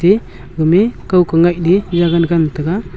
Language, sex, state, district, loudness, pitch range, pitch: Wancho, male, Arunachal Pradesh, Longding, -14 LUFS, 165-185 Hz, 170 Hz